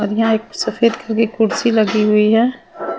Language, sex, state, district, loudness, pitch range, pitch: Hindi, female, Punjab, Kapurthala, -16 LUFS, 215-230 Hz, 225 Hz